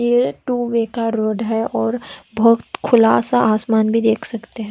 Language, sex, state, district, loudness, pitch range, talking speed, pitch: Hindi, female, Chhattisgarh, Raigarh, -17 LUFS, 220-240 Hz, 180 wpm, 230 Hz